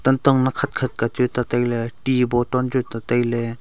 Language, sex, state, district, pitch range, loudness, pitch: Wancho, male, Arunachal Pradesh, Longding, 120-130 Hz, -20 LUFS, 125 Hz